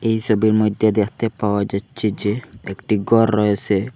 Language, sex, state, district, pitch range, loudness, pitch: Bengali, male, Assam, Hailakandi, 105-115 Hz, -19 LUFS, 105 Hz